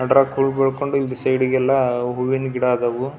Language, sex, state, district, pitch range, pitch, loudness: Kannada, male, Karnataka, Belgaum, 125-135 Hz, 130 Hz, -19 LUFS